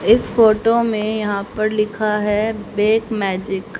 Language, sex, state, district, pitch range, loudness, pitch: Hindi, female, Haryana, Rohtak, 210-225 Hz, -18 LUFS, 215 Hz